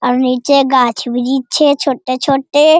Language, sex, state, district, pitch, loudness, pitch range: Hindi, female, Bihar, Jamui, 265 Hz, -13 LUFS, 250-285 Hz